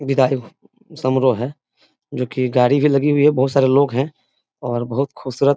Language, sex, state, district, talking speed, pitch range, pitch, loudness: Hindi, male, Bihar, Sitamarhi, 205 wpm, 130-145 Hz, 135 Hz, -18 LUFS